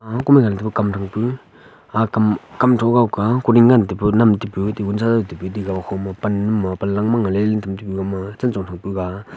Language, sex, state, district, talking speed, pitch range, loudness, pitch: Wancho, male, Arunachal Pradesh, Longding, 165 wpm, 95-115 Hz, -18 LUFS, 105 Hz